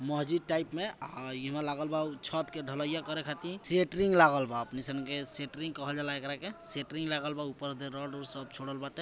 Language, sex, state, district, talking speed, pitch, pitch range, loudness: Maithili, male, Bihar, Samastipur, 245 wpm, 145 Hz, 140-160 Hz, -34 LUFS